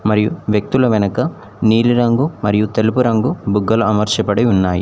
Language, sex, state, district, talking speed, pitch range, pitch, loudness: Telugu, male, Telangana, Mahabubabad, 125 wpm, 105-120 Hz, 110 Hz, -15 LUFS